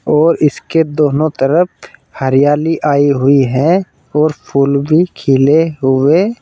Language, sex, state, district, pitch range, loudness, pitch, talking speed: Hindi, male, Uttar Pradesh, Saharanpur, 140-160 Hz, -12 LUFS, 150 Hz, 120 wpm